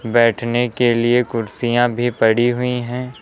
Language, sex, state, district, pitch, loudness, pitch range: Hindi, male, Uttar Pradesh, Lucknow, 120 Hz, -17 LUFS, 115-120 Hz